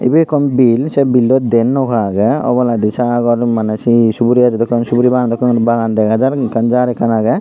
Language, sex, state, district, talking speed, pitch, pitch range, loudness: Chakma, male, Tripura, Unakoti, 205 wpm, 120 Hz, 115-125 Hz, -13 LUFS